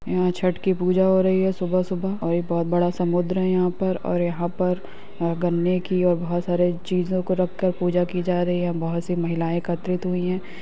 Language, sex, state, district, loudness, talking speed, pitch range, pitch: Hindi, female, Uttar Pradesh, Budaun, -23 LUFS, 225 wpm, 175-185 Hz, 180 Hz